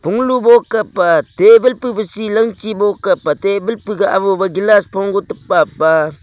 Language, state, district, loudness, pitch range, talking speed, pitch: Nyishi, Arunachal Pradesh, Papum Pare, -13 LUFS, 195-230 Hz, 125 wpm, 210 Hz